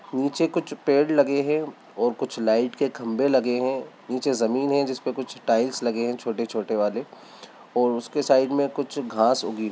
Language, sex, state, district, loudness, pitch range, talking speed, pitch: Hindi, male, Bihar, Sitamarhi, -24 LUFS, 120-140 Hz, 185 wpm, 130 Hz